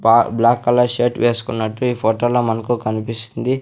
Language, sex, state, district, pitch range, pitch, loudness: Telugu, male, Andhra Pradesh, Sri Satya Sai, 115-120 Hz, 120 Hz, -18 LUFS